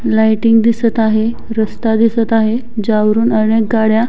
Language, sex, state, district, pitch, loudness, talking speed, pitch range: Marathi, female, Maharashtra, Chandrapur, 225 Hz, -13 LUFS, 145 wpm, 220-230 Hz